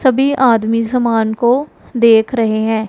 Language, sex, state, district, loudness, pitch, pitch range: Hindi, female, Punjab, Pathankot, -13 LUFS, 230 Hz, 220-250 Hz